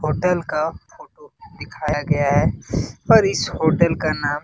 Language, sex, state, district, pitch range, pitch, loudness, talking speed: Hindi, male, Bihar, Jamui, 150-195 Hz, 160 Hz, -19 LUFS, 150 wpm